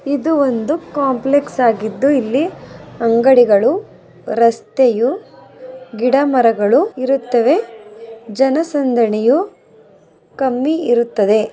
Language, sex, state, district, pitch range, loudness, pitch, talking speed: Kannada, female, Karnataka, Mysore, 230-280 Hz, -15 LUFS, 255 Hz, 60 wpm